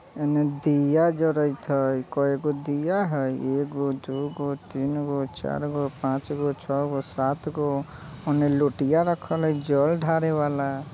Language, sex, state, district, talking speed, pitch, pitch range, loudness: Bajjika, male, Bihar, Vaishali, 115 wpm, 145 Hz, 140-150 Hz, -25 LUFS